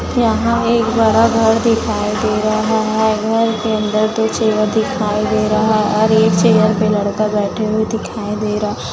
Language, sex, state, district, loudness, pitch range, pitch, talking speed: Hindi, female, Chhattisgarh, Raipur, -15 LUFS, 210-220 Hz, 215 Hz, 175 wpm